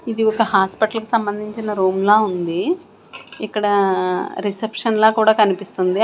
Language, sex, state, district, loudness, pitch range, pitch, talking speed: Telugu, female, Andhra Pradesh, Sri Satya Sai, -18 LUFS, 195-220 Hz, 210 Hz, 130 wpm